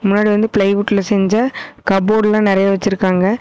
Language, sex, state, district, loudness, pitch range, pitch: Tamil, female, Tamil Nadu, Namakkal, -15 LUFS, 195-210 Hz, 205 Hz